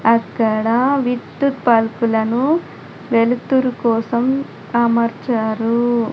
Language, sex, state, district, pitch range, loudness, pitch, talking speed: Telugu, female, Telangana, Adilabad, 230-255 Hz, -17 LUFS, 235 Hz, 60 wpm